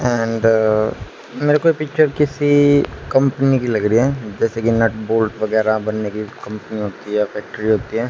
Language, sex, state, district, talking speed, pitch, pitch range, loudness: Hindi, male, Haryana, Charkhi Dadri, 180 wpm, 115 Hz, 110-135 Hz, -17 LUFS